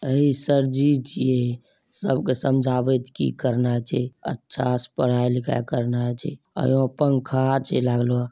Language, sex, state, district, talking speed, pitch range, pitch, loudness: Angika, male, Bihar, Bhagalpur, 135 wpm, 125-135 Hz, 130 Hz, -23 LUFS